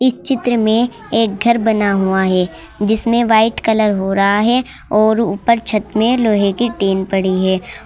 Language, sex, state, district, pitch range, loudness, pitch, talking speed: Hindi, female, Uttar Pradesh, Saharanpur, 195-235 Hz, -15 LUFS, 220 Hz, 175 wpm